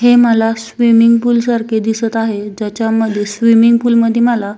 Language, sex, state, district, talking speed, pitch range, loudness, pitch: Marathi, female, Maharashtra, Solapur, 170 wpm, 225-235 Hz, -12 LUFS, 230 Hz